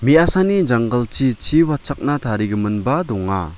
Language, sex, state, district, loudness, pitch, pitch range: Garo, male, Meghalaya, West Garo Hills, -18 LUFS, 130 Hz, 105-155 Hz